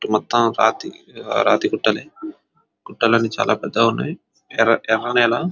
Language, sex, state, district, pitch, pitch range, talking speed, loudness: Telugu, male, Telangana, Nalgonda, 115 Hz, 110-120 Hz, 110 wpm, -18 LUFS